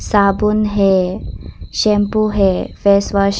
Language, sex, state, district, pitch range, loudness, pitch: Hindi, female, Arunachal Pradesh, Papum Pare, 185-210 Hz, -15 LUFS, 200 Hz